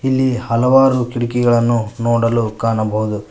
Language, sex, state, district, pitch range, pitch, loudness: Kannada, male, Karnataka, Koppal, 115-125 Hz, 120 Hz, -16 LUFS